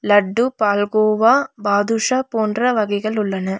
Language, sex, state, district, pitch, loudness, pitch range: Tamil, female, Tamil Nadu, Nilgiris, 215 Hz, -17 LUFS, 205-230 Hz